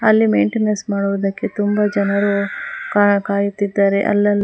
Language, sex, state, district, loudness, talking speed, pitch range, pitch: Kannada, female, Karnataka, Bangalore, -17 LUFS, 95 wpm, 200-205 Hz, 200 Hz